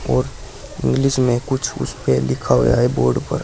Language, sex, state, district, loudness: Hindi, male, Uttar Pradesh, Saharanpur, -18 LUFS